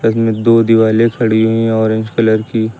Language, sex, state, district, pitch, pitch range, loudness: Hindi, male, Uttar Pradesh, Lucknow, 110 Hz, 110-115 Hz, -12 LUFS